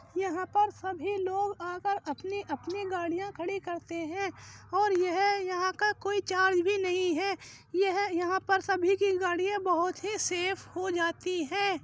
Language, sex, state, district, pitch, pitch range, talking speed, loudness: Hindi, female, Uttar Pradesh, Jyotiba Phule Nagar, 375 Hz, 360-395 Hz, 155 wpm, -30 LUFS